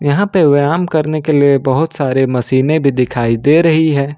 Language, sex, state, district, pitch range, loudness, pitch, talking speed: Hindi, male, Jharkhand, Ranchi, 135-155 Hz, -13 LUFS, 145 Hz, 200 wpm